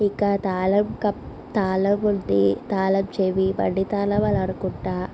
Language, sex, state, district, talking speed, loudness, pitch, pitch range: Telugu, female, Andhra Pradesh, Visakhapatnam, 130 wpm, -22 LUFS, 195 Hz, 190-205 Hz